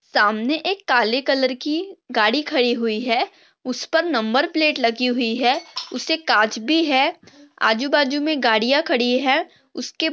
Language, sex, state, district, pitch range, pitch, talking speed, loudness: Hindi, female, Maharashtra, Sindhudurg, 245-315 Hz, 270 Hz, 150 wpm, -20 LUFS